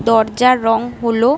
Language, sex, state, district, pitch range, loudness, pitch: Bengali, female, West Bengal, Kolkata, 225-250 Hz, -15 LUFS, 230 Hz